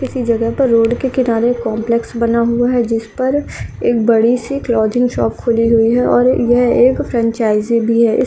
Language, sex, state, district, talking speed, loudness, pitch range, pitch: Hindi, female, Bihar, Madhepura, 195 wpm, -14 LUFS, 230-245 Hz, 235 Hz